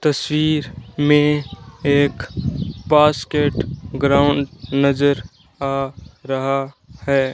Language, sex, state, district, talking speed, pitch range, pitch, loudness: Hindi, male, Rajasthan, Bikaner, 75 wpm, 135-145 Hz, 140 Hz, -19 LUFS